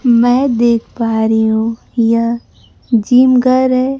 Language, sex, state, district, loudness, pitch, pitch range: Hindi, female, Bihar, Kaimur, -13 LUFS, 235 Hz, 230-255 Hz